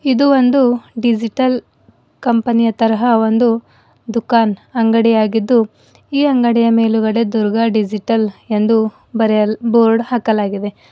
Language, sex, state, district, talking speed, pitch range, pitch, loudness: Kannada, female, Karnataka, Bidar, 105 wpm, 220-240 Hz, 230 Hz, -15 LUFS